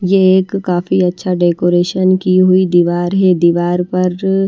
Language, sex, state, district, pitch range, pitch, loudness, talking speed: Hindi, female, Haryana, Charkhi Dadri, 175-185 Hz, 180 Hz, -13 LUFS, 160 wpm